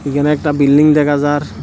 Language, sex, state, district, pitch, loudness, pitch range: Bengali, male, Tripura, South Tripura, 145 Hz, -13 LUFS, 145-150 Hz